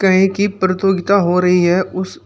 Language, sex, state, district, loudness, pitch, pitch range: Hindi, male, Uttar Pradesh, Shamli, -15 LUFS, 190 Hz, 180-195 Hz